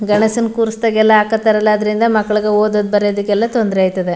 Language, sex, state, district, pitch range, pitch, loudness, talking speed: Kannada, female, Karnataka, Mysore, 210-220 Hz, 215 Hz, -14 LUFS, 145 wpm